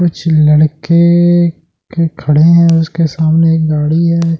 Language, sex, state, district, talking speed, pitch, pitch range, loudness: Hindi, male, Delhi, New Delhi, 150 wpm, 165 Hz, 155-170 Hz, -10 LUFS